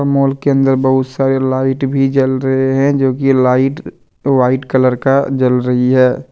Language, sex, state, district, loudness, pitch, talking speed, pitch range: Hindi, male, Jharkhand, Deoghar, -13 LUFS, 135 Hz, 170 wpm, 130-135 Hz